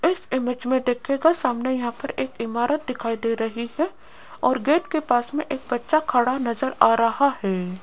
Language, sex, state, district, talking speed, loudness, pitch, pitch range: Hindi, female, Rajasthan, Jaipur, 190 wpm, -23 LUFS, 255 Hz, 235-280 Hz